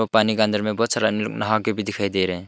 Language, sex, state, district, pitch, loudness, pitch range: Hindi, male, Arunachal Pradesh, Longding, 105 Hz, -22 LUFS, 105-110 Hz